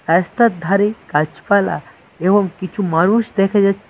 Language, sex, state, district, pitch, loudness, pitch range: Bengali, male, West Bengal, Cooch Behar, 195 Hz, -16 LUFS, 175-205 Hz